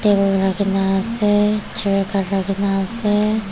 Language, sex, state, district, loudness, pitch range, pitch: Nagamese, female, Nagaland, Dimapur, -17 LUFS, 195-210 Hz, 200 Hz